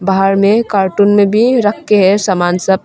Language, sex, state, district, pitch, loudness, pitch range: Hindi, female, Arunachal Pradesh, Longding, 200 Hz, -11 LUFS, 190-210 Hz